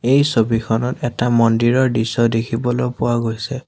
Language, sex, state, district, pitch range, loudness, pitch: Assamese, male, Assam, Sonitpur, 115-125 Hz, -17 LUFS, 120 Hz